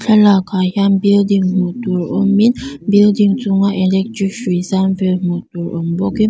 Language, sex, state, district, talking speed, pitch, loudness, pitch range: Mizo, female, Mizoram, Aizawl, 160 wpm, 195 Hz, -15 LUFS, 185-205 Hz